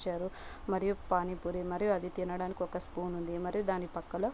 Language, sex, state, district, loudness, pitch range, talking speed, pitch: Telugu, female, Andhra Pradesh, Guntur, -36 LUFS, 175-190 Hz, 180 wpm, 180 Hz